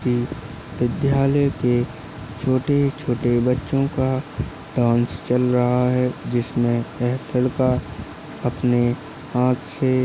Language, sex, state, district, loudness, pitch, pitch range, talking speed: Hindi, male, Maharashtra, Aurangabad, -21 LUFS, 125 Hz, 120-135 Hz, 95 wpm